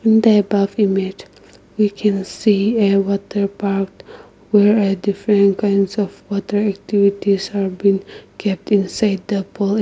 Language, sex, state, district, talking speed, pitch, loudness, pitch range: English, female, Nagaland, Kohima, 140 wpm, 200 Hz, -17 LUFS, 195-210 Hz